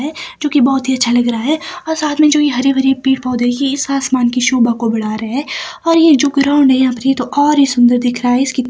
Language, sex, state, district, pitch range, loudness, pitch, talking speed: Hindi, female, Himachal Pradesh, Shimla, 245-290 Hz, -13 LUFS, 270 Hz, 290 wpm